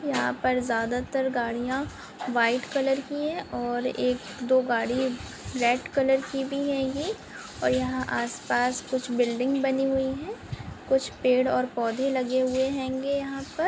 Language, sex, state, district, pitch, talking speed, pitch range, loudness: Hindi, female, Maharashtra, Chandrapur, 260 Hz, 155 wpm, 245-270 Hz, -27 LUFS